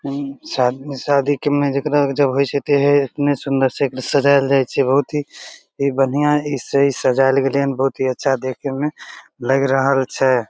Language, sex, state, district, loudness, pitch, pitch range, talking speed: Maithili, male, Bihar, Begusarai, -18 LUFS, 140 Hz, 135-145 Hz, 130 wpm